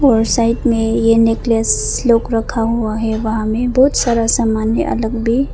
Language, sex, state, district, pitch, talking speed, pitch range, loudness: Hindi, female, Arunachal Pradesh, Papum Pare, 230 Hz, 185 wpm, 225-235 Hz, -15 LUFS